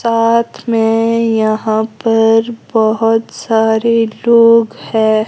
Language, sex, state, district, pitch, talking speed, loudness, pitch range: Hindi, female, Himachal Pradesh, Shimla, 225 Hz, 90 wpm, -12 LUFS, 220-230 Hz